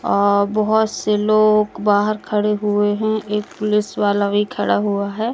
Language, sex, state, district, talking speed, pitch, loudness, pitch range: Hindi, female, Madhya Pradesh, Katni, 170 wpm, 210 Hz, -18 LUFS, 205-215 Hz